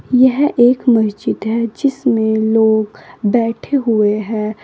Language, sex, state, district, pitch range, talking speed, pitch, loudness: Hindi, female, Uttar Pradesh, Saharanpur, 215-250 Hz, 115 wpm, 225 Hz, -15 LUFS